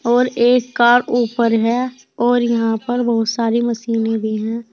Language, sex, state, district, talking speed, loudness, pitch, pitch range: Hindi, female, Uttar Pradesh, Saharanpur, 165 wpm, -17 LUFS, 235 Hz, 225-245 Hz